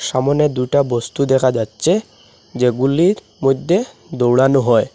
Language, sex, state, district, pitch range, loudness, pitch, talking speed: Bengali, male, Assam, Hailakandi, 125-150 Hz, -16 LUFS, 135 Hz, 110 wpm